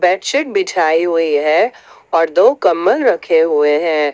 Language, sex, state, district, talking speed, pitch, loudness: Hindi, female, Jharkhand, Ranchi, 145 wpm, 175 Hz, -14 LUFS